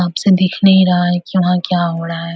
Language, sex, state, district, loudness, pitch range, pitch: Hindi, female, Bihar, Vaishali, -14 LUFS, 170-185 Hz, 180 Hz